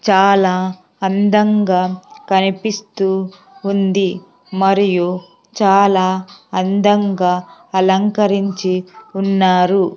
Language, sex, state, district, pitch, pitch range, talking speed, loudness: Telugu, female, Andhra Pradesh, Sri Satya Sai, 195 Hz, 185-200 Hz, 55 wpm, -16 LUFS